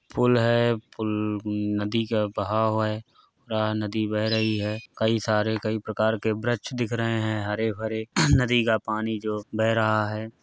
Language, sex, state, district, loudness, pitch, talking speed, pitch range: Hindi, male, Bihar, Gopalganj, -25 LUFS, 110 Hz, 180 wpm, 110-115 Hz